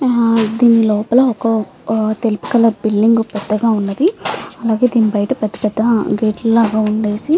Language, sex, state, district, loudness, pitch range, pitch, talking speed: Telugu, female, Andhra Pradesh, Visakhapatnam, -15 LUFS, 215-230 Hz, 220 Hz, 140 wpm